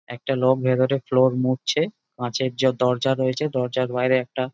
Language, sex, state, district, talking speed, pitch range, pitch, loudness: Bengali, male, West Bengal, Jhargram, 170 wpm, 125-130 Hz, 130 Hz, -22 LUFS